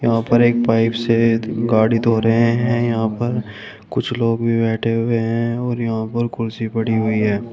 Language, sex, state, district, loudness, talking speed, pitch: Hindi, male, Uttar Pradesh, Shamli, -18 LUFS, 190 wpm, 115 Hz